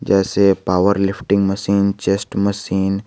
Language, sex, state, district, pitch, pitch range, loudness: Hindi, male, Jharkhand, Garhwa, 100 Hz, 95-100 Hz, -17 LUFS